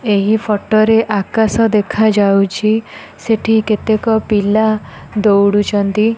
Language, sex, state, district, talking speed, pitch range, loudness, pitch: Odia, female, Odisha, Nuapada, 95 wpm, 205-220 Hz, -14 LUFS, 215 Hz